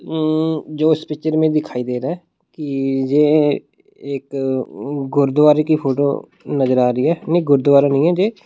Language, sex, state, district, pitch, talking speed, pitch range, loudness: Hindi, male, Bihar, Muzaffarpur, 145 Hz, 170 wpm, 135-155 Hz, -17 LUFS